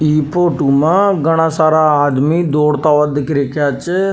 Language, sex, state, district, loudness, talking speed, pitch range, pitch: Rajasthani, male, Rajasthan, Nagaur, -13 LUFS, 160 wpm, 145-165 Hz, 150 Hz